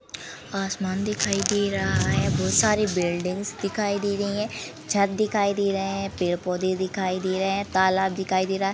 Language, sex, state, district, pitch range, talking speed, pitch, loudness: Hindi, female, Uttar Pradesh, Jalaun, 185-200 Hz, 185 wpm, 195 Hz, -24 LUFS